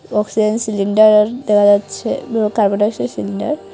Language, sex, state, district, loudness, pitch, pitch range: Bengali, female, Tripura, Unakoti, -15 LUFS, 210 Hz, 200-215 Hz